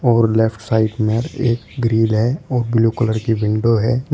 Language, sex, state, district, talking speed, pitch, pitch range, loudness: Hindi, male, Uttar Pradesh, Shamli, 190 wpm, 115 Hz, 110-120 Hz, -17 LUFS